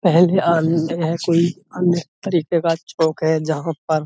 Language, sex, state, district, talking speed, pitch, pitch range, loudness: Hindi, male, Uttar Pradesh, Budaun, 135 wpm, 165 Hz, 160-175 Hz, -19 LUFS